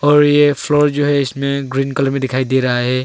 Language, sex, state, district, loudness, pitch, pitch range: Hindi, male, Arunachal Pradesh, Longding, -15 LUFS, 140 Hz, 130-145 Hz